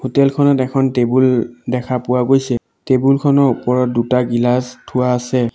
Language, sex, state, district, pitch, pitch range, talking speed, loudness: Assamese, male, Assam, Sonitpur, 125 Hz, 125-135 Hz, 150 wpm, -16 LUFS